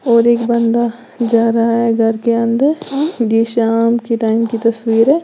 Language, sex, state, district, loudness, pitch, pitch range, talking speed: Hindi, female, Uttar Pradesh, Lalitpur, -14 LUFS, 230 Hz, 230-235 Hz, 170 wpm